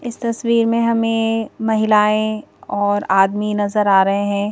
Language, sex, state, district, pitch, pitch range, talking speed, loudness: Hindi, female, Madhya Pradesh, Bhopal, 215 Hz, 205-225 Hz, 145 wpm, -17 LUFS